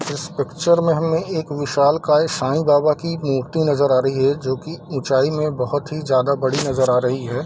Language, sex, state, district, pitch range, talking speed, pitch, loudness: Hindi, male, Bihar, East Champaran, 135-155 Hz, 210 wpm, 145 Hz, -19 LUFS